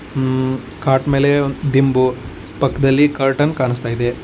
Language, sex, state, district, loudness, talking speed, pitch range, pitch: Kannada, male, Karnataka, Koppal, -17 LUFS, 100 wpm, 125-140 Hz, 130 Hz